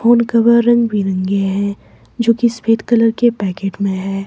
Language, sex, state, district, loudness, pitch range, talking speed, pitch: Hindi, female, Himachal Pradesh, Shimla, -15 LUFS, 195-235 Hz, 170 wpm, 225 Hz